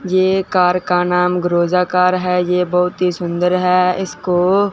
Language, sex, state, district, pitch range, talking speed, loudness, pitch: Hindi, male, Punjab, Fazilka, 180-185 Hz, 165 wpm, -16 LUFS, 180 Hz